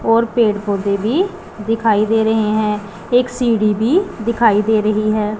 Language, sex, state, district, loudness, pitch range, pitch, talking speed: Hindi, female, Punjab, Pathankot, -16 LUFS, 210-235 Hz, 220 Hz, 165 wpm